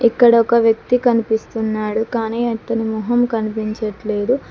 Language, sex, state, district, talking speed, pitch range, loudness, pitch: Telugu, female, Telangana, Mahabubabad, 105 wpm, 220-235 Hz, -18 LUFS, 225 Hz